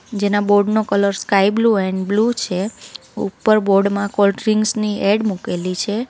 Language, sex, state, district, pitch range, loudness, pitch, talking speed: Gujarati, female, Gujarat, Valsad, 200-215 Hz, -17 LUFS, 205 Hz, 165 wpm